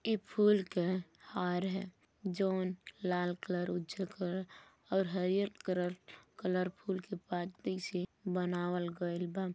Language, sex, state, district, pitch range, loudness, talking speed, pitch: Bhojpuri, female, Uttar Pradesh, Gorakhpur, 180-190 Hz, -37 LUFS, 130 wpm, 185 Hz